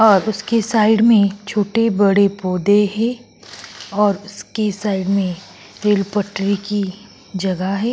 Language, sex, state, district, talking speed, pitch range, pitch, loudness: Hindi, female, Maharashtra, Aurangabad, 130 wpm, 195-215 Hz, 205 Hz, -18 LUFS